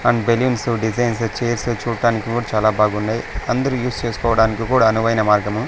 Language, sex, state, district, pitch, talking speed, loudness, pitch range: Telugu, male, Andhra Pradesh, Sri Satya Sai, 115 Hz, 150 wpm, -18 LUFS, 110-120 Hz